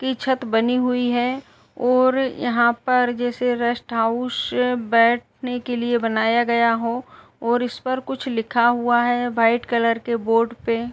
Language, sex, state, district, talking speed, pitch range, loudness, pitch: Hindi, female, Uttar Pradesh, Muzaffarnagar, 165 wpm, 235-250 Hz, -20 LUFS, 240 Hz